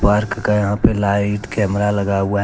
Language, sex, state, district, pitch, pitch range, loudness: Hindi, male, Jharkhand, Deoghar, 105 Hz, 100-105 Hz, -18 LUFS